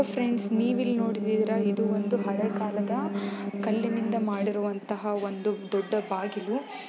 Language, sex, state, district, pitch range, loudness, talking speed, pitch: Kannada, female, Karnataka, Belgaum, 205-225 Hz, -28 LUFS, 120 wpm, 210 Hz